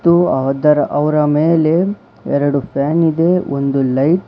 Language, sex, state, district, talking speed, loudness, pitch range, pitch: Kannada, male, Karnataka, Bangalore, 140 wpm, -15 LUFS, 140-165 Hz, 150 Hz